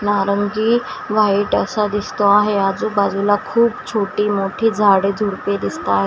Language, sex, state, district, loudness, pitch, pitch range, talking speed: Marathi, female, Maharashtra, Washim, -17 LUFS, 205 Hz, 200-210 Hz, 130 wpm